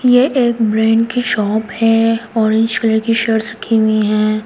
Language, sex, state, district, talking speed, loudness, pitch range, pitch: Hindi, female, Delhi, New Delhi, 150 wpm, -14 LUFS, 220-230 Hz, 225 Hz